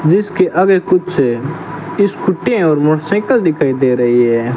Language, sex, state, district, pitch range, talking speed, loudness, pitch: Hindi, male, Rajasthan, Bikaner, 130-190 Hz, 130 wpm, -13 LUFS, 165 Hz